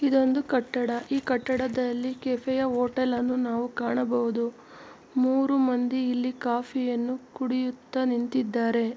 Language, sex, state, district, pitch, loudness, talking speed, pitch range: Kannada, female, Karnataka, Mysore, 250 Hz, -27 LUFS, 100 wpm, 240-260 Hz